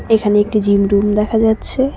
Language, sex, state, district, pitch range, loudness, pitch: Bengali, female, West Bengal, Cooch Behar, 205-225 Hz, -14 LUFS, 210 Hz